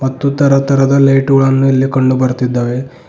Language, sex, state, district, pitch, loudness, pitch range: Kannada, male, Karnataka, Bidar, 135 Hz, -12 LUFS, 130-135 Hz